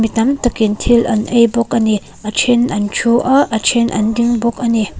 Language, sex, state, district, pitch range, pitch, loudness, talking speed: Mizo, female, Mizoram, Aizawl, 220-240 Hz, 235 Hz, -14 LUFS, 250 wpm